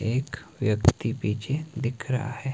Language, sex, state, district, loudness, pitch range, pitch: Hindi, male, Himachal Pradesh, Shimla, -27 LUFS, 115-135 Hz, 120 Hz